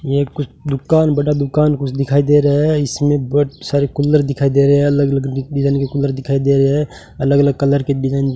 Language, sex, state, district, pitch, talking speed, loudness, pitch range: Hindi, male, Rajasthan, Bikaner, 140 Hz, 235 wpm, -15 LUFS, 135-145 Hz